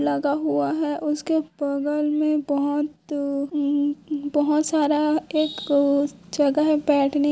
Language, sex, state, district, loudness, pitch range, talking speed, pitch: Hindi, female, Chhattisgarh, Kabirdham, -23 LUFS, 285-300 Hz, 115 wpm, 295 Hz